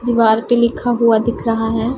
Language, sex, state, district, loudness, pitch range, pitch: Hindi, female, Punjab, Pathankot, -15 LUFS, 225-240 Hz, 235 Hz